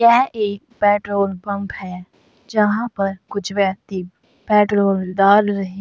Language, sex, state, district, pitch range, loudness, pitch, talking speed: Hindi, female, Uttar Pradesh, Saharanpur, 195-210 Hz, -19 LUFS, 200 Hz, 135 wpm